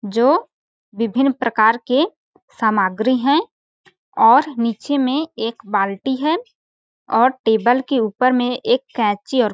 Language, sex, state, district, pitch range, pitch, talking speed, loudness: Hindi, female, Chhattisgarh, Balrampur, 225-270 Hz, 245 Hz, 125 wpm, -18 LUFS